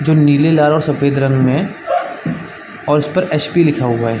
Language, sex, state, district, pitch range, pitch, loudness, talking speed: Hindi, male, Chhattisgarh, Bastar, 140-155 Hz, 150 Hz, -14 LUFS, 215 wpm